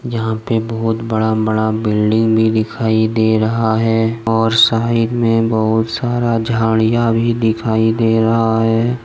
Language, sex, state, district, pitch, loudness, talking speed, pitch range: Hindi, male, Jharkhand, Deoghar, 115 Hz, -15 LUFS, 145 wpm, 110-115 Hz